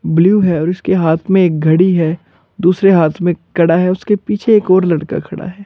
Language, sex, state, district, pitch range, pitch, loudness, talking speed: Hindi, male, Chandigarh, Chandigarh, 165-195 Hz, 180 Hz, -13 LUFS, 225 wpm